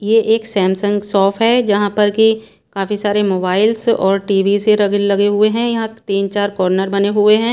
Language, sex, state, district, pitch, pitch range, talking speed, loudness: Hindi, female, Maharashtra, Gondia, 205 Hz, 200-220 Hz, 200 wpm, -15 LUFS